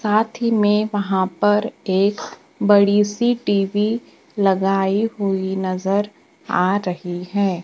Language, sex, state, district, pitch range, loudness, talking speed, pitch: Hindi, female, Maharashtra, Gondia, 190-210 Hz, -19 LUFS, 120 wpm, 200 Hz